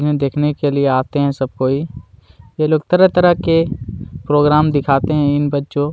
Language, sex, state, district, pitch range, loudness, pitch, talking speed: Hindi, male, Chhattisgarh, Kabirdham, 135-150 Hz, -15 LUFS, 145 Hz, 180 wpm